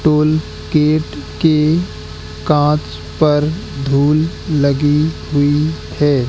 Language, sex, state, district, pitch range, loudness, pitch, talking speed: Hindi, male, Madhya Pradesh, Katni, 145-155 Hz, -15 LUFS, 150 Hz, 85 wpm